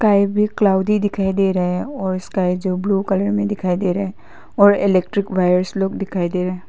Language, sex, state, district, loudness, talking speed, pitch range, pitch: Hindi, female, Arunachal Pradesh, Papum Pare, -18 LUFS, 200 wpm, 185-200 Hz, 195 Hz